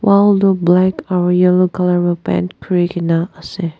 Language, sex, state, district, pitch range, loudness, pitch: Nagamese, female, Nagaland, Dimapur, 170-185 Hz, -15 LUFS, 180 Hz